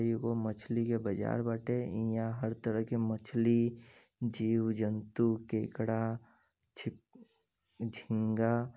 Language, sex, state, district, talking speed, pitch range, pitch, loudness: Bhojpuri, male, Uttar Pradesh, Gorakhpur, 110 wpm, 110-115 Hz, 115 Hz, -34 LUFS